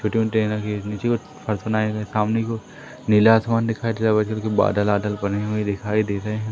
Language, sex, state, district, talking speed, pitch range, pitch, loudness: Hindi, male, Madhya Pradesh, Umaria, 200 wpm, 105-110 Hz, 110 Hz, -22 LUFS